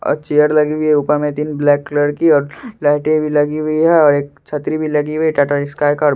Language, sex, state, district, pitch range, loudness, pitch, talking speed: Hindi, male, Bihar, Supaul, 145-155 Hz, -15 LUFS, 150 Hz, 265 wpm